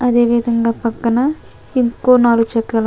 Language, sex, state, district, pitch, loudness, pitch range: Telugu, female, Andhra Pradesh, Chittoor, 235 Hz, -15 LUFS, 230-245 Hz